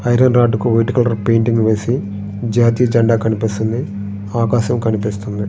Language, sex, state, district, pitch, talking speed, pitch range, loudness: Telugu, male, Andhra Pradesh, Srikakulam, 115 Hz, 130 wpm, 105-120 Hz, -16 LUFS